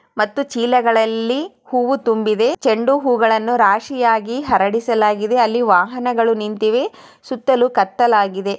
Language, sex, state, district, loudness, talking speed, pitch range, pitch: Kannada, female, Karnataka, Chamarajanagar, -16 LUFS, 100 wpm, 215-250 Hz, 230 Hz